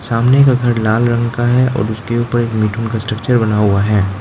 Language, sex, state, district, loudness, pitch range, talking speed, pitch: Hindi, male, Arunachal Pradesh, Lower Dibang Valley, -14 LUFS, 110-120 Hz, 240 wpm, 115 Hz